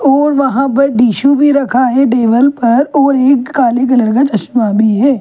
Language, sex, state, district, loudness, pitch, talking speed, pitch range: Hindi, female, Delhi, New Delhi, -11 LUFS, 265 Hz, 195 wpm, 240-275 Hz